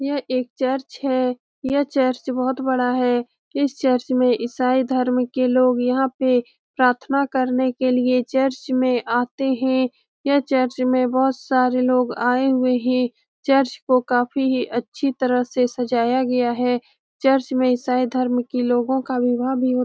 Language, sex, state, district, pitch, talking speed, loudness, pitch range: Hindi, female, Bihar, Saran, 255 Hz, 165 wpm, -20 LUFS, 250-265 Hz